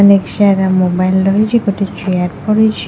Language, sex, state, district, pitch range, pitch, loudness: Odia, female, Odisha, Khordha, 185-210 Hz, 200 Hz, -13 LUFS